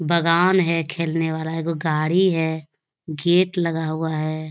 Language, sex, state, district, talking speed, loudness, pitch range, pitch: Hindi, female, Bihar, Lakhisarai, 160 wpm, -21 LUFS, 155-170 Hz, 165 Hz